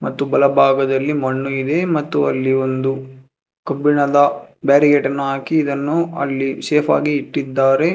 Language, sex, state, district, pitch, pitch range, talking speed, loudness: Kannada, male, Karnataka, Bangalore, 140 Hz, 135-145 Hz, 120 wpm, -17 LUFS